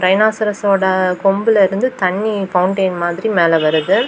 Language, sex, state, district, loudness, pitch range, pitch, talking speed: Tamil, female, Tamil Nadu, Kanyakumari, -15 LUFS, 180-210 Hz, 195 Hz, 130 wpm